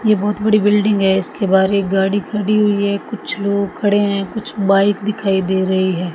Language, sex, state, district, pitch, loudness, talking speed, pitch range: Hindi, female, Rajasthan, Bikaner, 200 Hz, -16 LUFS, 205 wpm, 195-210 Hz